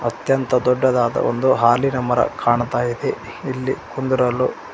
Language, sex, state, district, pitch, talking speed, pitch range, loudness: Kannada, male, Karnataka, Koppal, 125 Hz, 115 wpm, 120-130 Hz, -19 LUFS